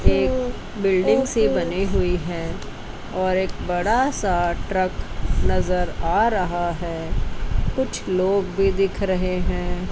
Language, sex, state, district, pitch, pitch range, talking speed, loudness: Hindi, female, Chandigarh, Chandigarh, 185 Hz, 170-195 Hz, 125 wpm, -22 LUFS